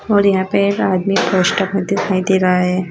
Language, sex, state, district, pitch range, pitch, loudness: Hindi, female, Uttar Pradesh, Shamli, 185-200 Hz, 190 Hz, -15 LUFS